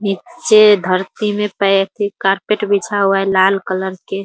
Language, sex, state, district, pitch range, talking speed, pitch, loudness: Hindi, female, Bihar, Muzaffarpur, 195-210 Hz, 170 wpm, 195 Hz, -15 LUFS